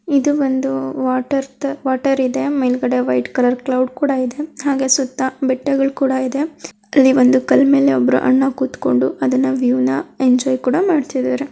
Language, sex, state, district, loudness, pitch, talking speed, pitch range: Kannada, female, Karnataka, Dakshina Kannada, -17 LUFS, 260 Hz, 130 wpm, 250-275 Hz